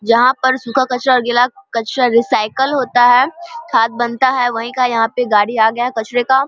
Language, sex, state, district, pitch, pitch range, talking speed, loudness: Hindi, male, Bihar, Saharsa, 245 Hz, 230-260 Hz, 215 wpm, -14 LUFS